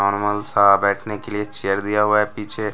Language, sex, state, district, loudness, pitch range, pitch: Hindi, male, Bihar, West Champaran, -19 LUFS, 100-105 Hz, 105 Hz